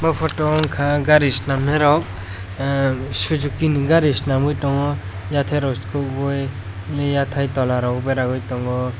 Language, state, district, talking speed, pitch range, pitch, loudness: Kokborok, Tripura, West Tripura, 120 wpm, 125-145 Hz, 140 Hz, -19 LUFS